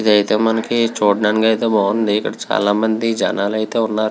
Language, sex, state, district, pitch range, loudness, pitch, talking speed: Telugu, male, Andhra Pradesh, Visakhapatnam, 105-115 Hz, -17 LUFS, 110 Hz, 145 wpm